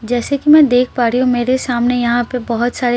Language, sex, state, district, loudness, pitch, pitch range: Hindi, female, Bihar, Patna, -14 LUFS, 245 Hz, 240-255 Hz